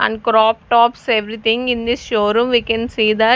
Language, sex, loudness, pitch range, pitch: English, female, -16 LUFS, 220-240 Hz, 230 Hz